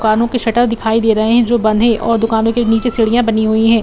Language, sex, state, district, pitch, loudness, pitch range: Hindi, female, Bihar, Saran, 225 Hz, -13 LUFS, 220-235 Hz